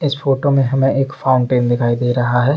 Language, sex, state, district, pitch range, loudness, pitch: Hindi, male, Jharkhand, Jamtara, 125-135 Hz, -16 LUFS, 130 Hz